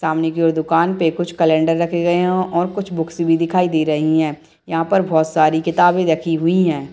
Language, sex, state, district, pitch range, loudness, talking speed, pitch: Hindi, female, Bihar, Gopalganj, 160-175 Hz, -17 LUFS, 215 wpm, 165 Hz